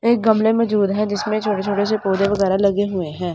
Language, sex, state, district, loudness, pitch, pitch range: Hindi, female, Delhi, New Delhi, -18 LUFS, 205 Hz, 195-215 Hz